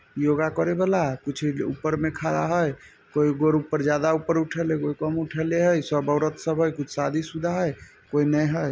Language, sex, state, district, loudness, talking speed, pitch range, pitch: Maithili, male, Bihar, Samastipur, -24 LUFS, 195 wpm, 150-160 Hz, 155 Hz